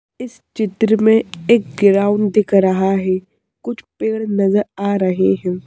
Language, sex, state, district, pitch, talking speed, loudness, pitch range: Hindi, female, Madhya Pradesh, Bhopal, 200 Hz, 150 wpm, -16 LUFS, 190-220 Hz